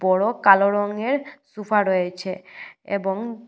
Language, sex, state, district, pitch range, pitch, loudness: Bengali, female, Tripura, West Tripura, 190-215 Hz, 200 Hz, -21 LUFS